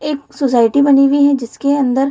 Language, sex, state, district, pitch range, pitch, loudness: Hindi, female, Bihar, Lakhisarai, 270-285 Hz, 275 Hz, -13 LUFS